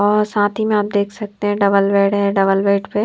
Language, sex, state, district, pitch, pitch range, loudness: Hindi, female, Himachal Pradesh, Shimla, 205 Hz, 200-210 Hz, -16 LUFS